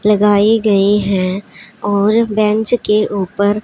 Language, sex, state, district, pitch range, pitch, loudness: Hindi, female, Punjab, Pathankot, 200-215 Hz, 210 Hz, -14 LUFS